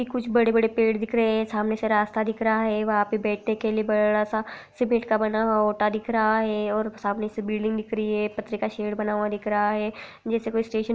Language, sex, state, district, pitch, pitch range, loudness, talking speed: Hindi, female, Bihar, Sitamarhi, 220 Hz, 210-225 Hz, -25 LUFS, 245 wpm